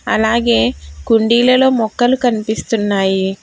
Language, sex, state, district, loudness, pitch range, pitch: Telugu, female, Telangana, Hyderabad, -14 LUFS, 195-235 Hz, 220 Hz